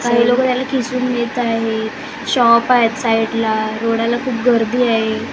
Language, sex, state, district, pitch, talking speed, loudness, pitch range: Marathi, female, Maharashtra, Gondia, 235 Hz, 145 wpm, -16 LUFS, 225-250 Hz